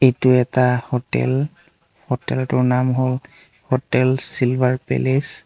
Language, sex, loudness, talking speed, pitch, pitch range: Assamese, male, -19 LUFS, 120 wpm, 130 Hz, 125-135 Hz